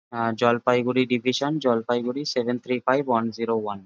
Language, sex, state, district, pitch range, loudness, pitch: Bengali, male, West Bengal, Jalpaiguri, 115-125 Hz, -24 LUFS, 125 Hz